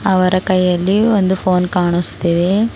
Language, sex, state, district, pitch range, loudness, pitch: Kannada, female, Karnataka, Bidar, 180-195 Hz, -15 LUFS, 185 Hz